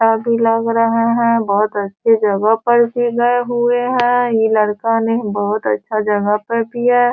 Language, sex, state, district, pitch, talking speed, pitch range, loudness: Hindi, female, Bihar, Sitamarhi, 230 Hz, 170 wpm, 210-240 Hz, -15 LUFS